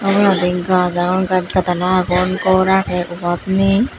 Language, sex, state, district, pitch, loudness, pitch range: Chakma, female, Tripura, Unakoti, 185 Hz, -16 LUFS, 180-190 Hz